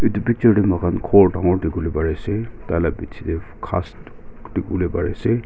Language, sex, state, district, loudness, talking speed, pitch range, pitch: Nagamese, male, Nagaland, Kohima, -20 LUFS, 175 wpm, 85-110 Hz, 95 Hz